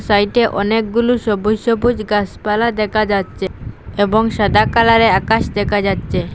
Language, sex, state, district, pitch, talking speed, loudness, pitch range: Bengali, female, Assam, Hailakandi, 215 Hz, 125 wpm, -15 LUFS, 205-230 Hz